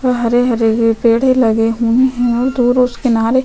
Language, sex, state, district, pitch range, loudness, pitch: Hindi, female, Chhattisgarh, Sukma, 230-250 Hz, -13 LUFS, 240 Hz